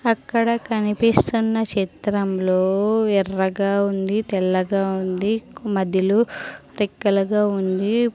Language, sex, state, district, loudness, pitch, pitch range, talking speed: Telugu, female, Andhra Pradesh, Sri Satya Sai, -21 LUFS, 200 Hz, 190-225 Hz, 75 wpm